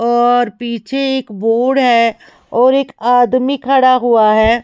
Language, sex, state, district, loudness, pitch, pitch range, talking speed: Hindi, female, Himachal Pradesh, Shimla, -13 LUFS, 245 Hz, 230-260 Hz, 140 wpm